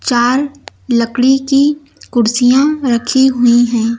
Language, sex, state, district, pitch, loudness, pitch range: Hindi, female, Uttar Pradesh, Lucknow, 250 Hz, -12 LUFS, 240-270 Hz